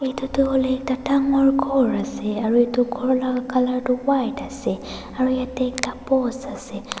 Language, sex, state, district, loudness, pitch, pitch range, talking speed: Nagamese, female, Nagaland, Dimapur, -22 LUFS, 260 Hz, 250-270 Hz, 170 wpm